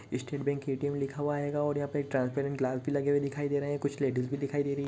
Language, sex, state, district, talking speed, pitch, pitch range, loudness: Hindi, male, Uttarakhand, Uttarkashi, 295 wpm, 140 Hz, 140-145 Hz, -32 LUFS